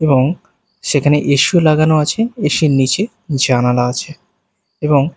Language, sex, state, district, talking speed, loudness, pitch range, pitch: Bengali, male, Bihar, Katihar, 165 wpm, -14 LUFS, 135-170 Hz, 150 Hz